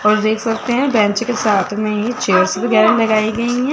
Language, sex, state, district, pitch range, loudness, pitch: Hindi, female, Chandigarh, Chandigarh, 210-240 Hz, -15 LUFS, 215 Hz